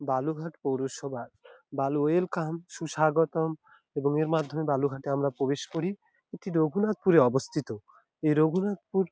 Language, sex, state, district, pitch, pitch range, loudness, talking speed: Bengali, male, West Bengal, Dakshin Dinajpur, 155 Hz, 140-165 Hz, -28 LUFS, 105 wpm